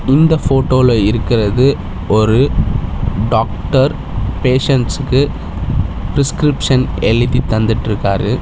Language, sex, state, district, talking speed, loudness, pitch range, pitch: Tamil, male, Tamil Nadu, Chennai, 65 wpm, -14 LUFS, 105-135 Hz, 125 Hz